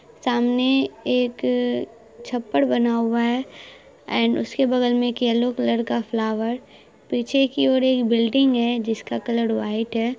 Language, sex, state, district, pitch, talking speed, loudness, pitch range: Hindi, female, Bihar, Saharsa, 235 Hz, 145 wpm, -22 LUFS, 225-250 Hz